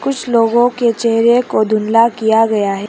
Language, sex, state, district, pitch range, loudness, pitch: Hindi, female, Arunachal Pradesh, Papum Pare, 220-240 Hz, -13 LUFS, 230 Hz